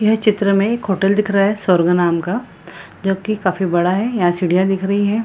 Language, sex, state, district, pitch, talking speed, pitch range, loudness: Hindi, female, Bihar, Samastipur, 195 Hz, 240 wpm, 180-210 Hz, -17 LUFS